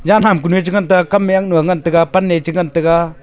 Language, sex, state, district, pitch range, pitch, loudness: Wancho, male, Arunachal Pradesh, Longding, 170-190 Hz, 180 Hz, -13 LUFS